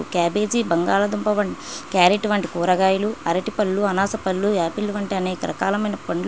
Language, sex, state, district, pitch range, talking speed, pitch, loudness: Telugu, female, Andhra Pradesh, Srikakulam, 185-210 Hz, 145 wpm, 200 Hz, -21 LUFS